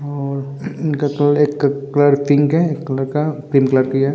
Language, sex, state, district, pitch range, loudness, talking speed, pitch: Hindi, male, Bihar, Vaishali, 140-145 Hz, -17 LUFS, 215 wpm, 145 Hz